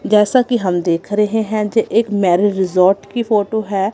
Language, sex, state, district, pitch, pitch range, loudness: Hindi, female, Punjab, Kapurthala, 210 Hz, 190-220 Hz, -16 LUFS